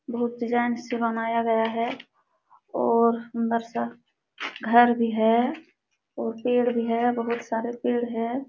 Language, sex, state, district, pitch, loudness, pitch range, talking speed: Hindi, female, Uttar Pradesh, Jalaun, 235 Hz, -25 LUFS, 230-240 Hz, 125 wpm